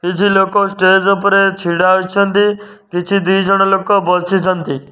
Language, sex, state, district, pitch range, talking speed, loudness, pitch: Odia, male, Odisha, Nuapada, 185-200 Hz, 135 wpm, -13 LUFS, 195 Hz